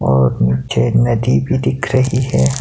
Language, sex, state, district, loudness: Hindi, male, Himachal Pradesh, Shimla, -15 LUFS